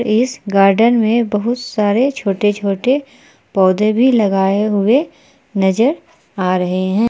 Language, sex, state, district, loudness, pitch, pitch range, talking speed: Hindi, female, Jharkhand, Palamu, -15 LUFS, 220 Hz, 195-255 Hz, 125 wpm